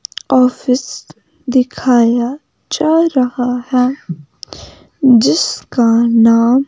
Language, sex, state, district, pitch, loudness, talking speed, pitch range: Hindi, female, Himachal Pradesh, Shimla, 250 Hz, -13 LUFS, 65 wpm, 235-265 Hz